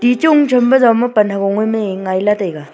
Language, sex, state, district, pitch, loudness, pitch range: Wancho, female, Arunachal Pradesh, Longding, 215 Hz, -13 LUFS, 195-245 Hz